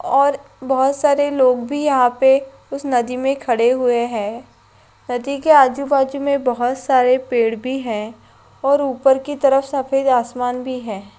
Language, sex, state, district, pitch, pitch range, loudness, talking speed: Hindi, female, Rajasthan, Nagaur, 265 Hz, 245-275 Hz, -17 LUFS, 160 wpm